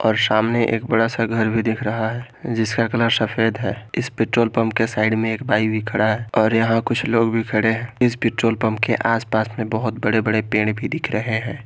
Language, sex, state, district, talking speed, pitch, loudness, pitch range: Hindi, male, Jharkhand, Garhwa, 235 wpm, 115 Hz, -20 LUFS, 110-115 Hz